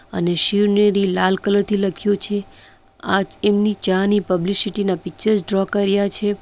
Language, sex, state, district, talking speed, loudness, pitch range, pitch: Gujarati, female, Gujarat, Valsad, 160 wpm, -17 LUFS, 185-205 Hz, 200 Hz